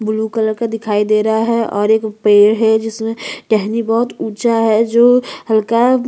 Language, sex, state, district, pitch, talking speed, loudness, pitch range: Hindi, female, Chhattisgarh, Jashpur, 220 Hz, 180 wpm, -14 LUFS, 215-230 Hz